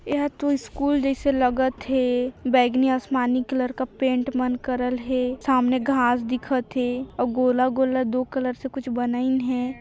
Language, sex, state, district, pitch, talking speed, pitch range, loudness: Hindi, female, Chhattisgarh, Sarguja, 255 Hz, 160 wpm, 250-265 Hz, -23 LUFS